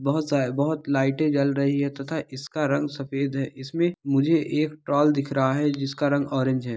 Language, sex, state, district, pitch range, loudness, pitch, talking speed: Hindi, male, Andhra Pradesh, Visakhapatnam, 135-150 Hz, -24 LUFS, 140 Hz, 205 wpm